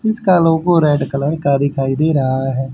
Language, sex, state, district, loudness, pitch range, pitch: Hindi, male, Haryana, Charkhi Dadri, -15 LUFS, 135-165 Hz, 145 Hz